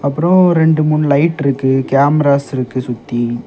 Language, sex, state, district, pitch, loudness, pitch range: Tamil, male, Tamil Nadu, Kanyakumari, 140 Hz, -13 LUFS, 130-155 Hz